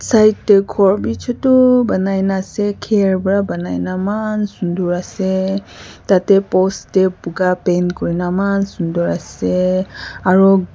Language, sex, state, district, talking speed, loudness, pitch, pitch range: Nagamese, female, Nagaland, Kohima, 145 wpm, -16 LUFS, 190 Hz, 180-200 Hz